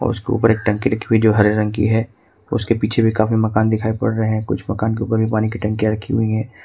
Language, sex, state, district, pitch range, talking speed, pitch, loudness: Hindi, male, Jharkhand, Ranchi, 110-115 Hz, 280 wpm, 110 Hz, -18 LUFS